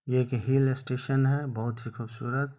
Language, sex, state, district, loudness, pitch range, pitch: Hindi, male, Jharkhand, Sahebganj, -29 LUFS, 120-135 Hz, 130 Hz